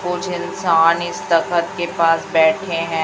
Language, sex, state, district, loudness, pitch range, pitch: Hindi, female, Chhattisgarh, Raipur, -17 LUFS, 165-180 Hz, 170 Hz